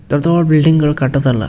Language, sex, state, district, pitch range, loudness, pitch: Kannada, male, Karnataka, Raichur, 135-160 Hz, -13 LUFS, 150 Hz